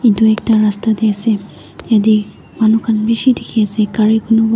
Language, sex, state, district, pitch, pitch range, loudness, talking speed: Nagamese, female, Nagaland, Dimapur, 220 Hz, 215-225 Hz, -14 LUFS, 170 wpm